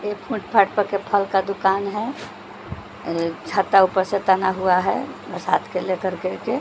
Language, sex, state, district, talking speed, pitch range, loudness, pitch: Hindi, female, Bihar, Patna, 155 wpm, 185-205 Hz, -21 LUFS, 195 Hz